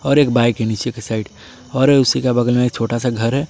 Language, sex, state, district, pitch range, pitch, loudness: Hindi, male, Jharkhand, Palamu, 115-135 Hz, 125 Hz, -17 LUFS